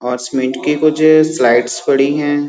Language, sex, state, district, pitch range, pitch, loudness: Hindi, male, Uttar Pradesh, Muzaffarnagar, 125-155 Hz, 140 Hz, -13 LUFS